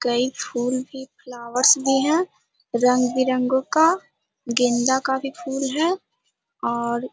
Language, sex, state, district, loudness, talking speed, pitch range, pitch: Hindi, female, Bihar, Jahanabad, -21 LUFS, 125 wpm, 245-275 Hz, 260 Hz